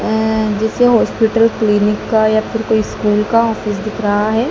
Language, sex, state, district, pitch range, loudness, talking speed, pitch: Hindi, male, Madhya Pradesh, Dhar, 210-225 Hz, -14 LUFS, 185 wpm, 220 Hz